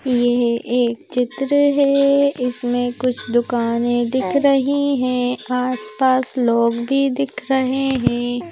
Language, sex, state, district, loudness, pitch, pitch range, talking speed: Hindi, female, Madhya Pradesh, Bhopal, -18 LUFS, 250 Hz, 240-270 Hz, 115 wpm